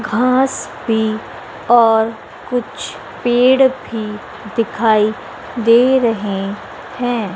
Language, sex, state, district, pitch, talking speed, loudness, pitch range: Hindi, female, Madhya Pradesh, Dhar, 230 Hz, 80 wpm, -16 LUFS, 220-245 Hz